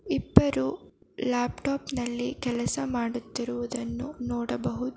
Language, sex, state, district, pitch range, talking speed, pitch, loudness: Kannada, female, Karnataka, Bangalore, 235-255 Hz, 70 wpm, 245 Hz, -29 LUFS